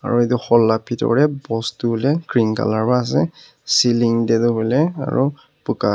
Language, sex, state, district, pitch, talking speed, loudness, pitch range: Nagamese, male, Nagaland, Kohima, 120 Hz, 190 wpm, -18 LUFS, 115-135 Hz